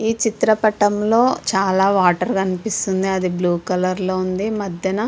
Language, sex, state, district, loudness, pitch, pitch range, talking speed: Telugu, female, Andhra Pradesh, Visakhapatnam, -18 LUFS, 195 Hz, 185-215 Hz, 165 wpm